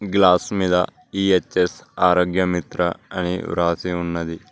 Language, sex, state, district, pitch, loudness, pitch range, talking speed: Telugu, male, Telangana, Mahabubabad, 90 Hz, -20 LUFS, 90-95 Hz, 130 wpm